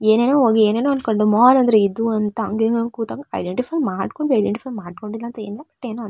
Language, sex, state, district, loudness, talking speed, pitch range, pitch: Kannada, female, Karnataka, Shimoga, -18 LUFS, 195 wpm, 215-250 Hz, 225 Hz